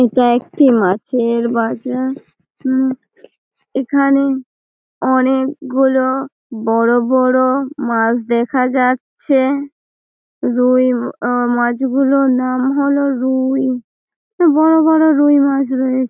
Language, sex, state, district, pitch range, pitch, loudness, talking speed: Bengali, female, West Bengal, Malda, 245-275 Hz, 260 Hz, -15 LUFS, 105 wpm